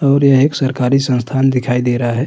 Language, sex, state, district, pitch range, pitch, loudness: Hindi, male, Uttarakhand, Tehri Garhwal, 125-135 Hz, 130 Hz, -14 LUFS